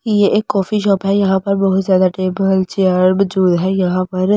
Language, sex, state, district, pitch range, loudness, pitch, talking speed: Hindi, female, Delhi, New Delhi, 185-200 Hz, -15 LUFS, 190 Hz, 220 wpm